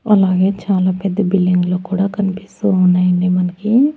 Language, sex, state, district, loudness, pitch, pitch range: Telugu, female, Andhra Pradesh, Annamaya, -15 LUFS, 190 Hz, 180-200 Hz